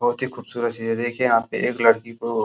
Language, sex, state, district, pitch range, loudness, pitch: Hindi, male, Uttar Pradesh, Hamirpur, 115-120 Hz, -22 LUFS, 120 Hz